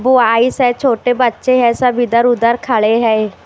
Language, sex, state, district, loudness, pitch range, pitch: Hindi, female, Chhattisgarh, Raipur, -13 LUFS, 230-250 Hz, 245 Hz